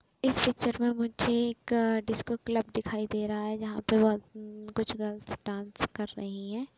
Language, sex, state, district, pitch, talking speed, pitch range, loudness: Hindi, female, Uttar Pradesh, Budaun, 220 Hz, 185 wpm, 210-235 Hz, -31 LUFS